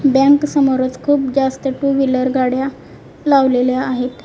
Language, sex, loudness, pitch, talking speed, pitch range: Marathi, female, -16 LUFS, 270 Hz, 125 wpm, 255-275 Hz